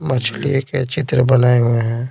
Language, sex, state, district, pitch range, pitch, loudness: Hindi, male, Bihar, Patna, 120-135 Hz, 125 Hz, -16 LUFS